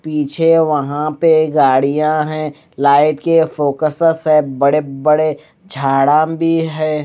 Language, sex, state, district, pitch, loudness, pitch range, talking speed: Hindi, male, Odisha, Malkangiri, 155 Hz, -14 LUFS, 145-160 Hz, 120 wpm